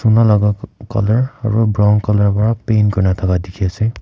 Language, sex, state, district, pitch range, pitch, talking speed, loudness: Nagamese, male, Nagaland, Kohima, 100-110 Hz, 105 Hz, 165 wpm, -15 LUFS